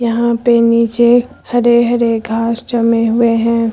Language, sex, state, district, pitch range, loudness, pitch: Hindi, female, Uttar Pradesh, Lucknow, 230-235 Hz, -13 LUFS, 235 Hz